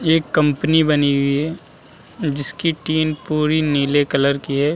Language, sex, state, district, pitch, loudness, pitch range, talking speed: Hindi, male, Uttar Pradesh, Muzaffarnagar, 150 Hz, -18 LUFS, 140-155 Hz, 165 wpm